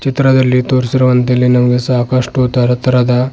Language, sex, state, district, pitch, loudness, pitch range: Kannada, male, Karnataka, Bidar, 125 Hz, -12 LUFS, 125-130 Hz